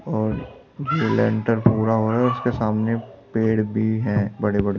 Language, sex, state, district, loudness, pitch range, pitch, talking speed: Hindi, male, Delhi, New Delhi, -22 LUFS, 105-115 Hz, 110 Hz, 175 wpm